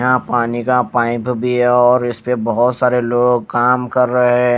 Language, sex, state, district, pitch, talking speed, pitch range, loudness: Hindi, male, Odisha, Nuapada, 125 Hz, 210 wpm, 120-125 Hz, -15 LUFS